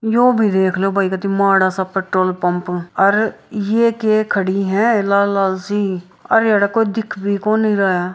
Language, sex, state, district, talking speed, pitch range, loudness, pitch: Hindi, female, Bihar, Saharsa, 160 wpm, 190-215 Hz, -16 LUFS, 200 Hz